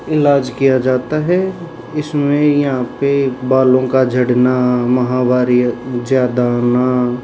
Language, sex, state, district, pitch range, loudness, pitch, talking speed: Hindi, male, Rajasthan, Jaipur, 125-140 Hz, -14 LUFS, 130 Hz, 110 wpm